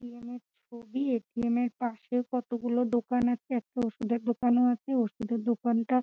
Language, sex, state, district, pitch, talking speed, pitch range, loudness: Bengali, female, West Bengal, Dakshin Dinajpur, 240 Hz, 150 wpm, 235-245 Hz, -30 LUFS